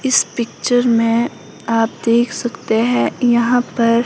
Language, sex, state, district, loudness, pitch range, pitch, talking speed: Hindi, female, Himachal Pradesh, Shimla, -16 LUFS, 230-245 Hz, 235 Hz, 135 wpm